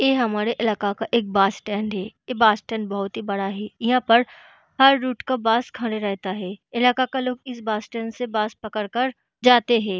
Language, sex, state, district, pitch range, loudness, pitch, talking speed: Hindi, female, Bihar, Gaya, 205-250 Hz, -22 LUFS, 225 Hz, 215 wpm